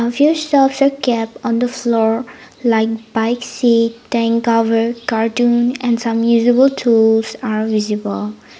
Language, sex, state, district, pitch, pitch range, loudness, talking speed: English, female, Nagaland, Dimapur, 235 Hz, 225-245 Hz, -16 LUFS, 125 wpm